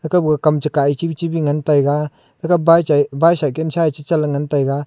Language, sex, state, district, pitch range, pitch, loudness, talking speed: Wancho, male, Arunachal Pradesh, Longding, 145-165 Hz, 150 Hz, -16 LUFS, 220 wpm